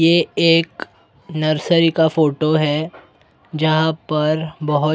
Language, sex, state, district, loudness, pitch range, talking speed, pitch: Hindi, male, Maharashtra, Mumbai Suburban, -17 LUFS, 150-160 Hz, 110 wpm, 155 Hz